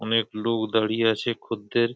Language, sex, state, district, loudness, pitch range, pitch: Bengali, male, West Bengal, Purulia, -25 LUFS, 110-115 Hz, 115 Hz